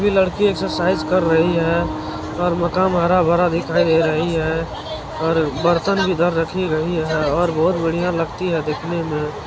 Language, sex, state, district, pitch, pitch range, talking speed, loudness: Hindi, male, Bihar, Araria, 170 Hz, 160-175 Hz, 170 wpm, -19 LUFS